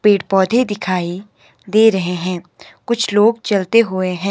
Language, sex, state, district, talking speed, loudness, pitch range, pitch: Hindi, male, Himachal Pradesh, Shimla, 155 wpm, -16 LUFS, 185-220 Hz, 200 Hz